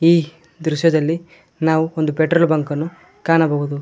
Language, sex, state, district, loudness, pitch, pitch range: Kannada, male, Karnataka, Koppal, -18 LUFS, 160 Hz, 155-165 Hz